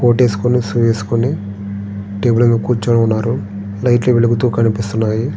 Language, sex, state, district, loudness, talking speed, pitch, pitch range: Telugu, male, Andhra Pradesh, Srikakulam, -15 LUFS, 110 wpm, 115 Hz, 105-120 Hz